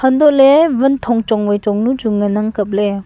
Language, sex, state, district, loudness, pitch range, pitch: Wancho, female, Arunachal Pradesh, Longding, -13 LUFS, 205-265 Hz, 225 Hz